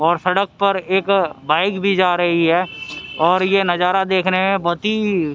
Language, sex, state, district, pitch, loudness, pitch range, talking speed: Hindi, male, Haryana, Rohtak, 185 Hz, -17 LUFS, 175-195 Hz, 180 wpm